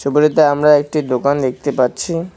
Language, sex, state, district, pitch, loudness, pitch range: Bengali, male, West Bengal, Cooch Behar, 145 Hz, -15 LUFS, 140-150 Hz